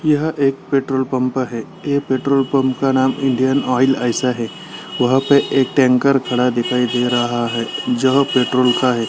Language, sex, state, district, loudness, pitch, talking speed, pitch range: Hindi, male, Bihar, Gaya, -17 LUFS, 130 Hz, 190 wpm, 125-135 Hz